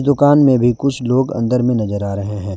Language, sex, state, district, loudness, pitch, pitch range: Hindi, male, Jharkhand, Garhwa, -15 LUFS, 125 Hz, 105-135 Hz